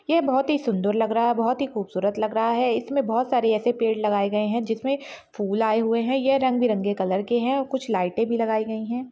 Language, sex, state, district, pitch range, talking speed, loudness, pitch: Hindi, female, Chhattisgarh, Balrampur, 215-255 Hz, 265 wpm, -23 LUFS, 230 Hz